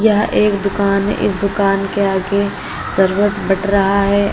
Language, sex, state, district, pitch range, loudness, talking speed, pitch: Hindi, female, Uttar Pradesh, Lalitpur, 195-200 Hz, -16 LUFS, 165 wpm, 200 Hz